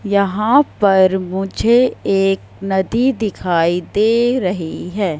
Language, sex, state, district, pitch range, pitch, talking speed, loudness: Hindi, female, Madhya Pradesh, Katni, 190-225 Hz, 195 Hz, 105 wpm, -16 LUFS